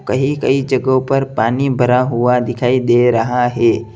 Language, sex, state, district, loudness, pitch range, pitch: Hindi, male, Uttar Pradesh, Lalitpur, -15 LUFS, 120-130 Hz, 125 Hz